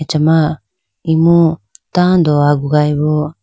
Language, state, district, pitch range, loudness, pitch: Idu Mishmi, Arunachal Pradesh, Lower Dibang Valley, 150-165 Hz, -13 LUFS, 155 Hz